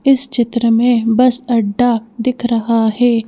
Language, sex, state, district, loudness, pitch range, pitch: Hindi, female, Madhya Pradesh, Bhopal, -14 LUFS, 230-245 Hz, 240 Hz